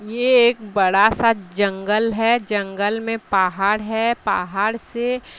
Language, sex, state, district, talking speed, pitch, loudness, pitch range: Hindi, female, Odisha, Sambalpur, 135 wpm, 215 Hz, -19 LUFS, 200-235 Hz